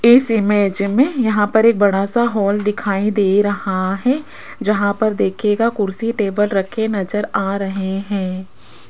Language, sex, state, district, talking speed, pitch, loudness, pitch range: Hindi, female, Rajasthan, Jaipur, 155 wpm, 205 Hz, -17 LUFS, 195-220 Hz